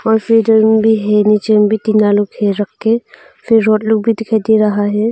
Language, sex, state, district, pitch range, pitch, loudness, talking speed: Hindi, female, Arunachal Pradesh, Longding, 210-225 Hz, 220 Hz, -13 LUFS, 210 wpm